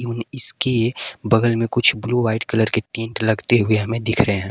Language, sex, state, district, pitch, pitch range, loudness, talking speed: Hindi, male, Jharkhand, Garhwa, 115 Hz, 110-120 Hz, -19 LUFS, 200 wpm